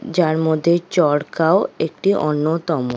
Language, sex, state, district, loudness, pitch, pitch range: Bengali, female, West Bengal, Kolkata, -18 LUFS, 160 Hz, 150-170 Hz